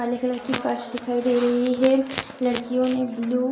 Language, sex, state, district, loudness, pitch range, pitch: Hindi, female, Bihar, Saharsa, -23 LUFS, 245-255 Hz, 250 Hz